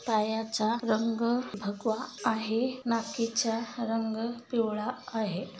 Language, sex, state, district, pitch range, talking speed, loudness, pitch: Marathi, female, Maharashtra, Nagpur, 220-235 Hz, 85 wpm, -31 LUFS, 225 Hz